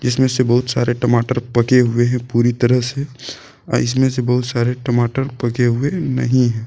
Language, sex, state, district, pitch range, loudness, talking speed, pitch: Hindi, male, Jharkhand, Deoghar, 120-130 Hz, -17 LUFS, 180 wpm, 125 Hz